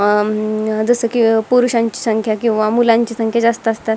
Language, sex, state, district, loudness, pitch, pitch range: Marathi, female, Maharashtra, Dhule, -15 LUFS, 225 Hz, 215-230 Hz